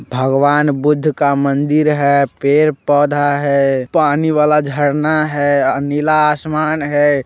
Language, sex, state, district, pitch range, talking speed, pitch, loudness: Hindi, male, Bihar, Muzaffarpur, 140-150 Hz, 130 wpm, 145 Hz, -14 LUFS